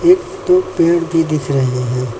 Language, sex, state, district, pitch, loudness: Hindi, male, Uttar Pradesh, Lucknow, 165 Hz, -15 LUFS